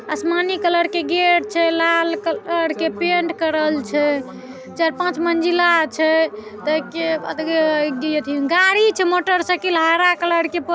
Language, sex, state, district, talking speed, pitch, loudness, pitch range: Maithili, female, Bihar, Saharsa, 125 wpm, 335 Hz, -18 LUFS, 315-350 Hz